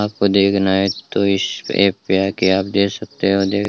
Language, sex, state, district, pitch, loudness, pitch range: Hindi, male, Rajasthan, Bikaner, 100 Hz, -17 LUFS, 95-100 Hz